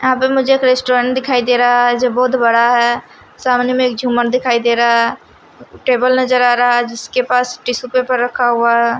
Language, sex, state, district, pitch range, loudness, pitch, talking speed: Hindi, female, Bihar, Kaimur, 240-255 Hz, -14 LUFS, 245 Hz, 200 wpm